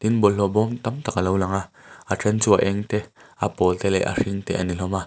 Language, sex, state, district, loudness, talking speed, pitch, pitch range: Mizo, male, Mizoram, Aizawl, -22 LUFS, 285 wpm, 100 Hz, 95-105 Hz